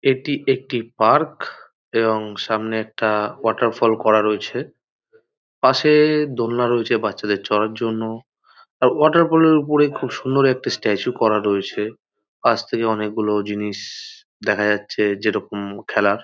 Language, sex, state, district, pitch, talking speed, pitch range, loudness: Bengali, male, West Bengal, North 24 Parganas, 115 Hz, 120 wpm, 105-140 Hz, -19 LUFS